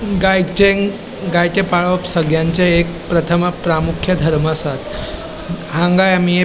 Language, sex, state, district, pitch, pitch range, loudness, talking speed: Konkani, male, Goa, North and South Goa, 175 Hz, 165-190 Hz, -15 LUFS, 120 wpm